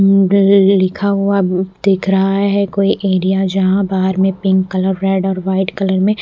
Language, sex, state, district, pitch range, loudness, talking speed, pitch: Hindi, female, Odisha, Malkangiri, 190-195 Hz, -14 LUFS, 165 wpm, 195 Hz